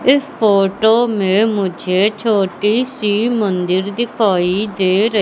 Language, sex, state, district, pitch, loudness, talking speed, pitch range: Hindi, female, Madhya Pradesh, Katni, 210 Hz, -15 LUFS, 115 wpm, 190-225 Hz